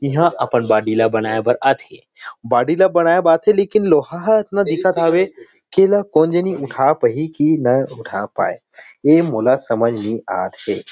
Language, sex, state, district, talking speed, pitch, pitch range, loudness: Chhattisgarhi, male, Chhattisgarh, Rajnandgaon, 170 wpm, 160 Hz, 125-190 Hz, -16 LUFS